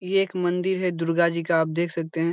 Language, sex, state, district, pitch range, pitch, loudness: Hindi, male, Bihar, Lakhisarai, 165-180 Hz, 170 Hz, -24 LUFS